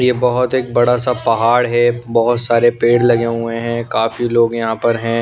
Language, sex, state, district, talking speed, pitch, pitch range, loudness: Hindi, male, Punjab, Pathankot, 220 wpm, 120 Hz, 115-120 Hz, -15 LUFS